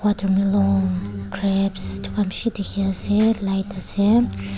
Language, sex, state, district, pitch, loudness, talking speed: Nagamese, female, Nagaland, Dimapur, 195 Hz, -20 LUFS, 105 wpm